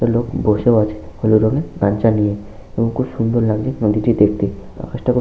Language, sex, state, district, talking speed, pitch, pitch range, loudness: Bengali, male, West Bengal, Malda, 185 wpm, 110 Hz, 105-120 Hz, -17 LUFS